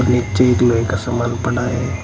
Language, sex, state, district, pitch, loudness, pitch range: Hindi, male, Uttar Pradesh, Shamli, 120 Hz, -17 LUFS, 115-125 Hz